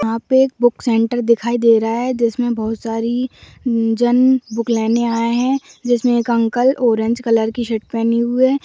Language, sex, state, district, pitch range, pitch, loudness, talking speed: Magahi, female, Bihar, Gaya, 230-245 Hz, 235 Hz, -17 LUFS, 200 wpm